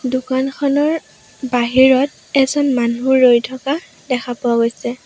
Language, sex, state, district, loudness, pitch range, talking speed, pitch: Assamese, female, Assam, Sonitpur, -16 LUFS, 245-275 Hz, 105 wpm, 260 Hz